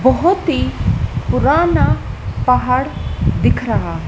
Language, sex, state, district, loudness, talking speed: Hindi, female, Madhya Pradesh, Dhar, -16 LUFS, 105 wpm